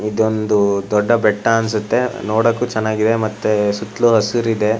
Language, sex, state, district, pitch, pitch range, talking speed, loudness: Kannada, male, Karnataka, Shimoga, 110 Hz, 105-115 Hz, 115 wpm, -17 LUFS